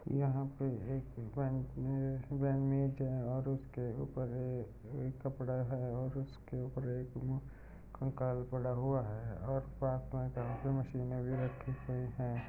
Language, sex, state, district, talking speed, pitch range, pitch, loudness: Hindi, male, Uttar Pradesh, Jyotiba Phule Nagar, 130 wpm, 125-135 Hz, 130 Hz, -39 LUFS